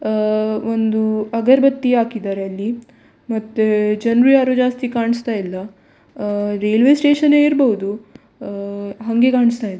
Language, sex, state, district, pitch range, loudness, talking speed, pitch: Kannada, female, Karnataka, Dakshina Kannada, 210-250 Hz, -17 LUFS, 120 wpm, 225 Hz